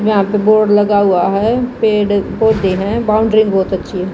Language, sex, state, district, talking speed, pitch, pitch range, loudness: Hindi, female, Haryana, Jhajjar, 190 wpm, 205 Hz, 195-220 Hz, -13 LUFS